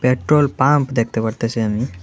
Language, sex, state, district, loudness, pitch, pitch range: Bengali, male, Tripura, West Tripura, -18 LUFS, 120 Hz, 115-135 Hz